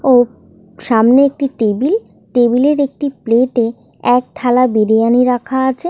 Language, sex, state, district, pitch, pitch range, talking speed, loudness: Bengali, female, West Bengal, Malda, 250 Hz, 235-275 Hz, 140 wpm, -14 LUFS